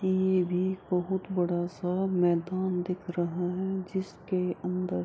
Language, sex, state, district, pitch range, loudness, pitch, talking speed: Hindi, female, Bihar, Kishanganj, 180-190 Hz, -30 LUFS, 180 Hz, 155 wpm